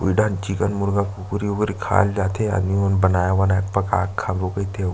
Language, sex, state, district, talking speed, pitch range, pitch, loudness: Chhattisgarhi, male, Chhattisgarh, Sarguja, 205 wpm, 95-100 Hz, 100 Hz, -21 LUFS